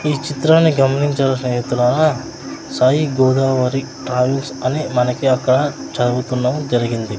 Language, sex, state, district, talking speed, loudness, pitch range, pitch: Telugu, male, Andhra Pradesh, Sri Satya Sai, 100 wpm, -17 LUFS, 125-140 Hz, 130 Hz